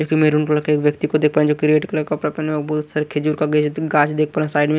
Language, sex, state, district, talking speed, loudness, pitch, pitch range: Hindi, male, Haryana, Rohtak, 315 wpm, -18 LUFS, 150 Hz, 150-155 Hz